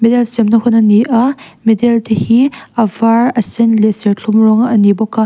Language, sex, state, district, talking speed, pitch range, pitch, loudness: Mizo, female, Mizoram, Aizawl, 230 wpm, 220-235 Hz, 225 Hz, -11 LUFS